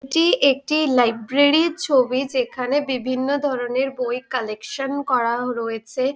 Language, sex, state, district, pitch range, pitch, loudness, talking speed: Bengali, female, West Bengal, Dakshin Dinajpur, 245-280 Hz, 260 Hz, -20 LUFS, 105 wpm